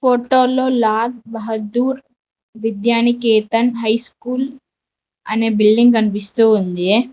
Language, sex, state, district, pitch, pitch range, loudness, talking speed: Telugu, female, Telangana, Mahabubabad, 230 Hz, 220-245 Hz, -16 LUFS, 85 wpm